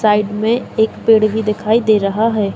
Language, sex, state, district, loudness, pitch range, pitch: Hindi, female, Chhattisgarh, Bilaspur, -15 LUFS, 210-225 Hz, 215 Hz